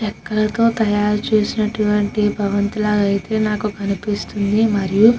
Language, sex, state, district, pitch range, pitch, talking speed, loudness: Telugu, female, Andhra Pradesh, Krishna, 205-215 Hz, 210 Hz, 115 wpm, -18 LUFS